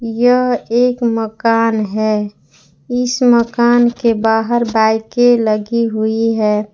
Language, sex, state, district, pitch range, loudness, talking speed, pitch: Hindi, female, Jharkhand, Palamu, 215-240 Hz, -14 LUFS, 115 wpm, 230 Hz